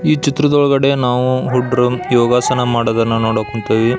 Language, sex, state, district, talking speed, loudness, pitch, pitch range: Kannada, male, Karnataka, Belgaum, 120 wpm, -15 LUFS, 125 Hz, 115-135 Hz